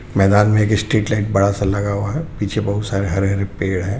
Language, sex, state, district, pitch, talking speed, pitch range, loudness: Hindi, male, Jharkhand, Ranchi, 100 Hz, 255 wpm, 100-105 Hz, -18 LUFS